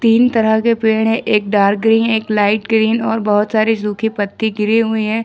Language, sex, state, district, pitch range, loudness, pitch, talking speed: Hindi, female, Jharkhand, Ranchi, 210-225 Hz, -15 LUFS, 220 Hz, 215 wpm